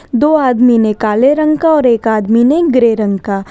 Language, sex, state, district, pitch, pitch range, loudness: Hindi, female, Uttar Pradesh, Lalitpur, 240 Hz, 215-290 Hz, -11 LUFS